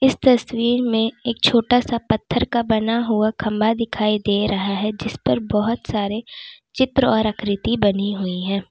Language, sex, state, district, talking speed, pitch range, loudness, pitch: Hindi, female, Uttar Pradesh, Lalitpur, 165 wpm, 205-235 Hz, -20 LUFS, 220 Hz